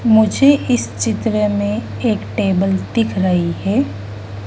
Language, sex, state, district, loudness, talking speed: Hindi, female, Madhya Pradesh, Dhar, -17 LUFS, 120 wpm